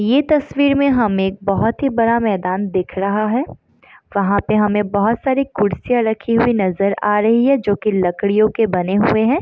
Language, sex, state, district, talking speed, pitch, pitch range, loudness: Hindi, female, Bihar, Samastipur, 195 wpm, 215 Hz, 200-240 Hz, -17 LUFS